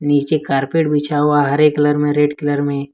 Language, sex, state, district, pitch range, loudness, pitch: Hindi, male, Jharkhand, Ranchi, 145-150 Hz, -16 LUFS, 145 Hz